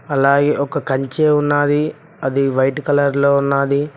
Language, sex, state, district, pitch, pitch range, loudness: Telugu, male, Telangana, Mahabubabad, 140 Hz, 140-145 Hz, -16 LUFS